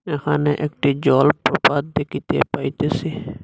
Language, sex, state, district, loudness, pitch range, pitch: Bengali, male, Assam, Hailakandi, -20 LUFS, 140-150 Hz, 145 Hz